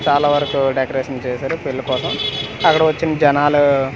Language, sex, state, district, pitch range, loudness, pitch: Telugu, male, Andhra Pradesh, Manyam, 135-145 Hz, -17 LUFS, 140 Hz